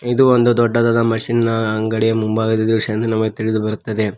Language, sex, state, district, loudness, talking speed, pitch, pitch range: Kannada, male, Karnataka, Koppal, -17 LUFS, 130 wpm, 110 Hz, 110-115 Hz